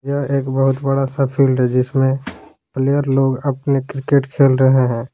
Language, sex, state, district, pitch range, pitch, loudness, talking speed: Hindi, male, Jharkhand, Palamu, 130-140 Hz, 135 Hz, -17 LUFS, 175 wpm